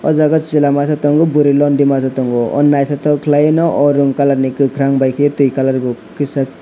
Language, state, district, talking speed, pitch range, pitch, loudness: Kokborok, Tripura, West Tripura, 210 wpm, 135-145 Hz, 140 Hz, -13 LUFS